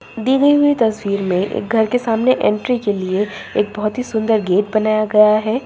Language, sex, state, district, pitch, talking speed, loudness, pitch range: Hindi, female, Bihar, Begusarai, 215 Hz, 210 wpm, -16 LUFS, 210-240 Hz